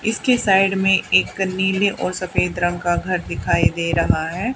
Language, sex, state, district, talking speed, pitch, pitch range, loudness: Hindi, female, Haryana, Charkhi Dadri, 185 wpm, 190 Hz, 175-200 Hz, -19 LUFS